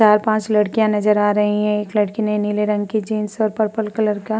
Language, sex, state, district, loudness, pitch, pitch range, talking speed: Hindi, female, Uttar Pradesh, Muzaffarnagar, -18 LUFS, 210 Hz, 210-215 Hz, 245 wpm